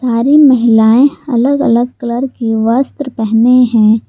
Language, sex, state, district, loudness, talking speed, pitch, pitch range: Hindi, female, Jharkhand, Garhwa, -10 LUFS, 130 wpm, 245 Hz, 230-265 Hz